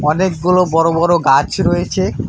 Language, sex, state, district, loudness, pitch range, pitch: Bengali, male, West Bengal, Alipurduar, -14 LUFS, 160-180 Hz, 165 Hz